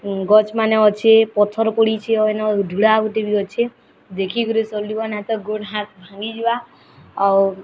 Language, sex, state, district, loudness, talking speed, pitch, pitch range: Odia, female, Odisha, Sambalpur, -18 LUFS, 155 wpm, 215 Hz, 205-225 Hz